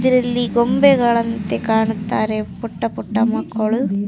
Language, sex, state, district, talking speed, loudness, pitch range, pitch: Kannada, female, Karnataka, Raichur, 120 wpm, -18 LUFS, 215-240 Hz, 230 Hz